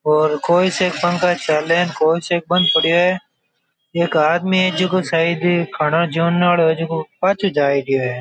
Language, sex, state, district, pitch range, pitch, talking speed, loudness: Marwari, male, Rajasthan, Nagaur, 155-180 Hz, 170 Hz, 155 wpm, -17 LUFS